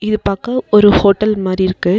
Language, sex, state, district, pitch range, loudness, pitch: Tamil, female, Tamil Nadu, Nilgiris, 190-215 Hz, -13 LUFS, 205 Hz